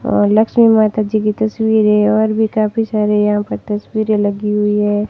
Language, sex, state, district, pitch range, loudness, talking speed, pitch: Hindi, female, Rajasthan, Barmer, 210-220 Hz, -14 LUFS, 200 wpm, 215 Hz